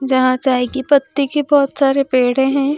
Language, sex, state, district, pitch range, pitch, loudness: Hindi, female, Madhya Pradesh, Bhopal, 260-280 Hz, 270 Hz, -15 LUFS